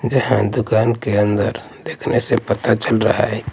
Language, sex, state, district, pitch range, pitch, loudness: Hindi, male, Delhi, New Delhi, 105-125 Hz, 115 Hz, -18 LUFS